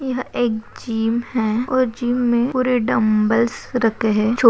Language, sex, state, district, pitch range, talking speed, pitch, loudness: Hindi, female, Maharashtra, Nagpur, 225-250 Hz, 175 wpm, 235 Hz, -19 LUFS